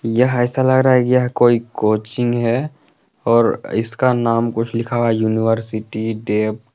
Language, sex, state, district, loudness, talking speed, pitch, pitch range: Hindi, male, Jharkhand, Palamu, -17 LUFS, 170 wpm, 115 Hz, 110-125 Hz